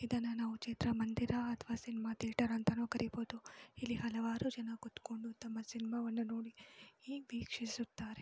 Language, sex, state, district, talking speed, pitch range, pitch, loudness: Kannada, female, Karnataka, Mysore, 125 wpm, 225-235 Hz, 230 Hz, -41 LUFS